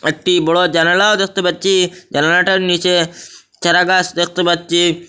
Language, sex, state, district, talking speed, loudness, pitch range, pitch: Bengali, male, Assam, Hailakandi, 120 wpm, -14 LUFS, 170-180 Hz, 175 Hz